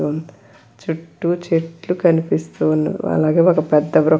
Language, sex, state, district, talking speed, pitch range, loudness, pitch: Telugu, female, Andhra Pradesh, Krishna, 115 wpm, 120-165 Hz, -18 LUFS, 155 Hz